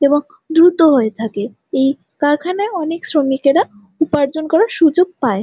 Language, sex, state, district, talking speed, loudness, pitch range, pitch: Bengali, female, West Bengal, Jalpaiguri, 135 wpm, -15 LUFS, 270-335 Hz, 300 Hz